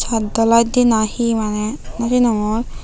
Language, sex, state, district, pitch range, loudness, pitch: Chakma, female, Tripura, Unakoti, 220-235 Hz, -17 LUFS, 230 Hz